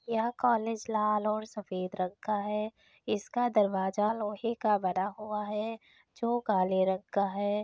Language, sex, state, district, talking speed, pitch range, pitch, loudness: Hindi, female, Uttar Pradesh, Deoria, 155 wpm, 200-225 Hz, 210 Hz, -31 LUFS